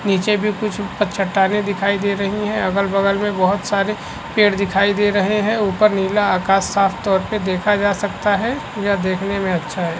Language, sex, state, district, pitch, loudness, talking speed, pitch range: Hindi, female, Chhattisgarh, Korba, 200 Hz, -18 LUFS, 190 wpm, 195-210 Hz